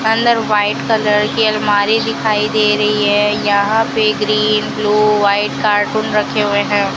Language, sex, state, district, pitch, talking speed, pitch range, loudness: Hindi, female, Rajasthan, Bikaner, 210 Hz, 155 wpm, 205-220 Hz, -14 LUFS